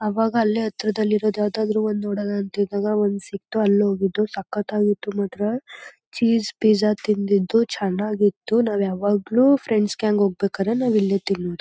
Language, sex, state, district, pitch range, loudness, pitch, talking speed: Kannada, female, Karnataka, Mysore, 200-215 Hz, -21 LUFS, 210 Hz, 145 wpm